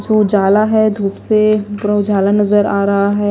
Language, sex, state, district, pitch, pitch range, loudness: Hindi, female, Maharashtra, Mumbai Suburban, 205 Hz, 200-215 Hz, -13 LUFS